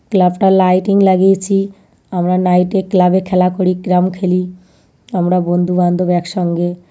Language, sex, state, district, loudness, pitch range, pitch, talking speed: Bengali, female, West Bengal, North 24 Parganas, -14 LUFS, 180-190 Hz, 180 Hz, 140 wpm